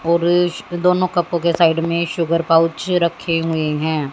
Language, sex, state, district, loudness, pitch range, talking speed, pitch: Hindi, female, Haryana, Jhajjar, -17 LUFS, 165-175 Hz, 175 wpm, 170 Hz